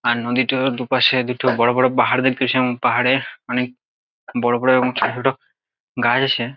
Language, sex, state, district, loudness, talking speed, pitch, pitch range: Bengali, male, West Bengal, Jalpaiguri, -18 LUFS, 155 wpm, 125 Hz, 120-130 Hz